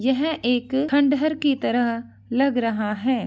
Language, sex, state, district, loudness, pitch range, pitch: Hindi, female, Uttar Pradesh, Ghazipur, -22 LUFS, 240-285 Hz, 260 Hz